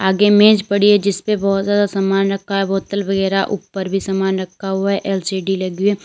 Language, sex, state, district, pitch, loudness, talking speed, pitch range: Hindi, female, Uttar Pradesh, Lalitpur, 195 Hz, -17 LUFS, 210 wpm, 190-200 Hz